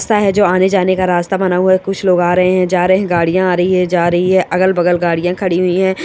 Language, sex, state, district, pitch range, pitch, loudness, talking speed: Hindi, male, Rajasthan, Churu, 180-185 Hz, 185 Hz, -13 LUFS, 290 wpm